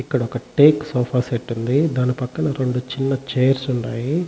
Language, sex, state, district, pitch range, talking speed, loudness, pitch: Telugu, male, Andhra Pradesh, Chittoor, 125-140 Hz, 170 wpm, -20 LUFS, 130 Hz